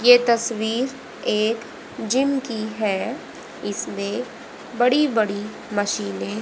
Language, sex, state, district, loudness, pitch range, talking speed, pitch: Hindi, female, Haryana, Rohtak, -23 LUFS, 210-245 Hz, 105 wpm, 225 Hz